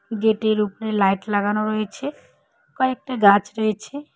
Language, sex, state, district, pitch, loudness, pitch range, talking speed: Bengali, female, West Bengal, Cooch Behar, 215 Hz, -21 LUFS, 205-230 Hz, 115 wpm